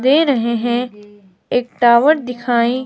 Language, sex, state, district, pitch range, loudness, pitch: Hindi, female, Himachal Pradesh, Shimla, 235-255 Hz, -16 LUFS, 240 Hz